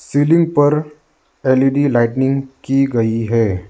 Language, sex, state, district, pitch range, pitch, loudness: Hindi, male, Arunachal Pradesh, Lower Dibang Valley, 115-145 Hz, 135 Hz, -16 LUFS